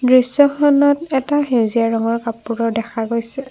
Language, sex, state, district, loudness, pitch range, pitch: Assamese, female, Assam, Kamrup Metropolitan, -17 LUFS, 230-280 Hz, 240 Hz